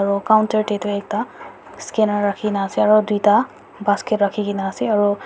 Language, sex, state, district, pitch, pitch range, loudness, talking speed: Nagamese, female, Nagaland, Dimapur, 205 Hz, 205-215 Hz, -19 LUFS, 180 wpm